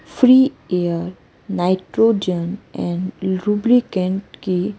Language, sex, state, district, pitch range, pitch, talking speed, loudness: Hindi, female, Chhattisgarh, Raipur, 180-210 Hz, 185 Hz, 90 wpm, -19 LUFS